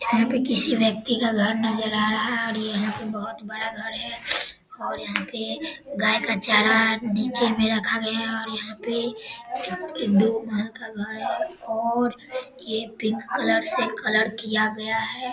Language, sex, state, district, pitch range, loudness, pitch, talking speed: Hindi, male, Bihar, Samastipur, 215-235 Hz, -23 LUFS, 225 Hz, 180 wpm